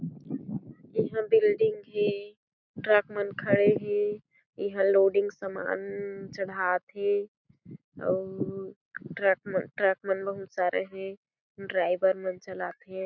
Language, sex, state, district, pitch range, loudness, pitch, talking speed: Chhattisgarhi, female, Chhattisgarh, Jashpur, 190-205 Hz, -28 LUFS, 195 Hz, 100 wpm